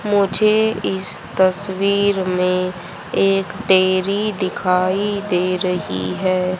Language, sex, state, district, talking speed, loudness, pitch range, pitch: Hindi, male, Haryana, Rohtak, 90 wpm, -17 LUFS, 185-200 Hz, 190 Hz